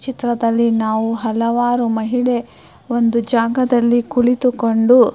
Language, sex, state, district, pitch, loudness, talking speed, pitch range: Kannada, female, Karnataka, Mysore, 235 Hz, -16 LUFS, 95 wpm, 230-245 Hz